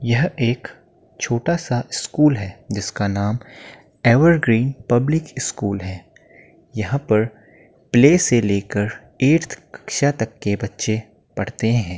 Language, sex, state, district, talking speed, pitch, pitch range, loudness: Hindi, male, Uttar Pradesh, Muzaffarnagar, 120 wpm, 120 Hz, 105-140 Hz, -20 LUFS